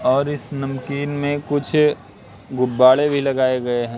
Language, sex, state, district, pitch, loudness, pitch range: Hindi, male, Madhya Pradesh, Katni, 135 Hz, -19 LUFS, 125-145 Hz